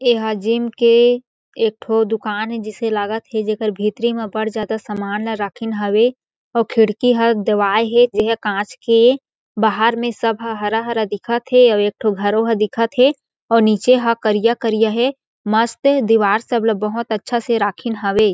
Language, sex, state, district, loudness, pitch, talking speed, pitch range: Chhattisgarhi, female, Chhattisgarh, Jashpur, -17 LUFS, 225 Hz, 185 wpm, 215-235 Hz